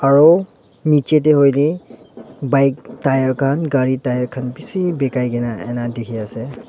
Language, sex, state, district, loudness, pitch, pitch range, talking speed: Nagamese, male, Nagaland, Dimapur, -17 LUFS, 135 Hz, 125-150 Hz, 145 wpm